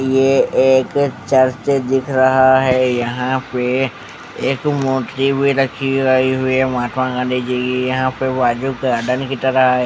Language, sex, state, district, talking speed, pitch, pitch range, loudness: Hindi, male, Bihar, West Champaran, 135 wpm, 130 Hz, 125-135 Hz, -16 LUFS